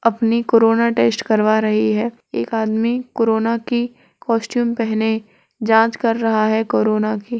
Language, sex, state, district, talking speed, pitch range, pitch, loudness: Hindi, female, Uttar Pradesh, Etah, 155 wpm, 220-235 Hz, 225 Hz, -18 LUFS